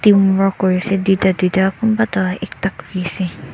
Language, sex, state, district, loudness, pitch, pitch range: Nagamese, male, Nagaland, Dimapur, -17 LUFS, 190 Hz, 185-195 Hz